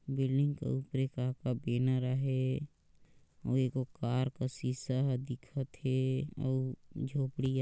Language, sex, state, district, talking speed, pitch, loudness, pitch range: Chhattisgarhi, male, Chhattisgarh, Sarguja, 160 wpm, 130 Hz, -35 LUFS, 130-135 Hz